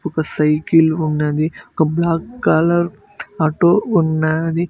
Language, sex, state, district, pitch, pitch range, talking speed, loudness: Telugu, male, Telangana, Mahabubabad, 160 Hz, 155-170 Hz, 100 wpm, -17 LUFS